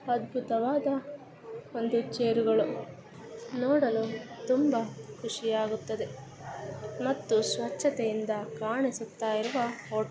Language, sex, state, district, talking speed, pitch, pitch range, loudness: Kannada, female, Karnataka, Bijapur, 70 wpm, 235 Hz, 225-265 Hz, -30 LUFS